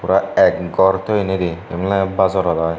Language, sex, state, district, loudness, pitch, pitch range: Chakma, male, Tripura, Dhalai, -17 LUFS, 95 Hz, 90-95 Hz